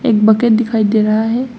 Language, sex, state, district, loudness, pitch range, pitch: Hindi, female, Assam, Hailakandi, -13 LUFS, 215-235 Hz, 225 Hz